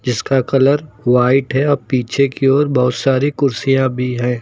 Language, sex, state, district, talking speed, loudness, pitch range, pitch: Hindi, male, Uttar Pradesh, Lucknow, 175 wpm, -15 LUFS, 125-140 Hz, 135 Hz